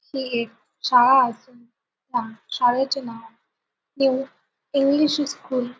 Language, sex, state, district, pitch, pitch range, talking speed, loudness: Marathi, female, Maharashtra, Sindhudurg, 260 Hz, 240-275 Hz, 115 wpm, -22 LUFS